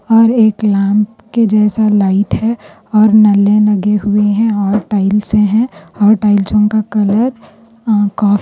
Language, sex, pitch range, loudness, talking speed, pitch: Urdu, female, 205-220 Hz, -12 LUFS, 150 wpm, 210 Hz